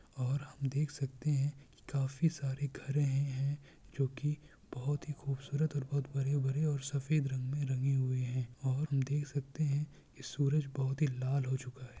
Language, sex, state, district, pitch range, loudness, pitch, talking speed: Urdu, male, Bihar, Kishanganj, 135-145 Hz, -36 LUFS, 140 Hz, 195 wpm